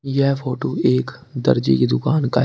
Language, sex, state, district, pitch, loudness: Hindi, male, Uttar Pradesh, Shamli, 130 Hz, -19 LUFS